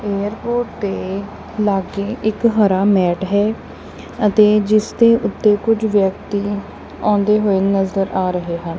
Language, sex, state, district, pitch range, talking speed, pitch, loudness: Punjabi, female, Punjab, Kapurthala, 195-215 Hz, 130 wpm, 205 Hz, -17 LUFS